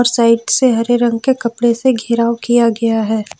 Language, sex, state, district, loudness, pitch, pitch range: Hindi, female, Jharkhand, Ranchi, -14 LUFS, 235 Hz, 230-240 Hz